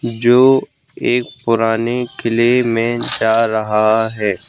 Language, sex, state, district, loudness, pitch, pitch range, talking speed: Hindi, male, Madhya Pradesh, Bhopal, -15 LUFS, 115 Hz, 110-120 Hz, 105 wpm